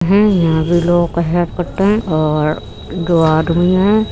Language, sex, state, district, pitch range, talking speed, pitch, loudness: Hindi, female, Uttar Pradesh, Etah, 160-190 Hz, 175 wpm, 175 Hz, -14 LUFS